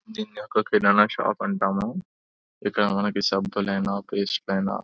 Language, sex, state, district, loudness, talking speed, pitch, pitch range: Telugu, male, Telangana, Nalgonda, -24 LUFS, 135 wpm, 100 Hz, 100-140 Hz